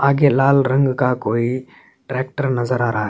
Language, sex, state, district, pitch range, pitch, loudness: Hindi, male, Chhattisgarh, Sarguja, 120-135 Hz, 130 Hz, -18 LUFS